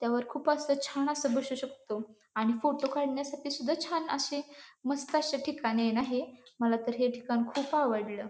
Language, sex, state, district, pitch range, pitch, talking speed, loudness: Marathi, female, Maharashtra, Pune, 240-285 Hz, 270 Hz, 180 wpm, -32 LUFS